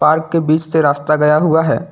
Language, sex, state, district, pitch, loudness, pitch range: Hindi, male, Uttar Pradesh, Lucknow, 155 Hz, -14 LUFS, 150-160 Hz